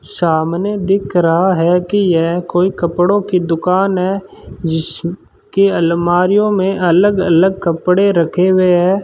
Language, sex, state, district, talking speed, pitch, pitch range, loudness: Hindi, male, Rajasthan, Bikaner, 135 wpm, 180 Hz, 170-190 Hz, -14 LUFS